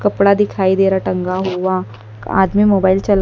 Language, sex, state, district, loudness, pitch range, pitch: Hindi, male, Madhya Pradesh, Dhar, -15 LUFS, 185-200 Hz, 190 Hz